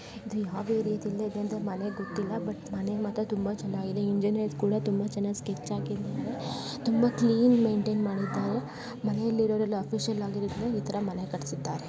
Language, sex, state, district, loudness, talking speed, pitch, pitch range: Kannada, female, Karnataka, Belgaum, -30 LUFS, 155 wpm, 205 Hz, 195-215 Hz